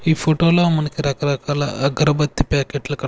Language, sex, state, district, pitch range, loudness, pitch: Telugu, male, Andhra Pradesh, Sri Satya Sai, 140-155 Hz, -18 LUFS, 145 Hz